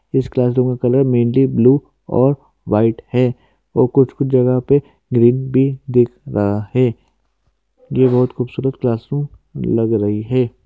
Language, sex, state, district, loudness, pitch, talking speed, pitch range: Hindi, male, Uttarakhand, Uttarkashi, -16 LUFS, 125 Hz, 145 wpm, 120-130 Hz